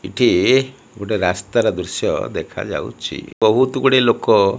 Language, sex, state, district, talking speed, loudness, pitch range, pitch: Odia, male, Odisha, Malkangiri, 145 wpm, -18 LUFS, 115-130 Hz, 130 Hz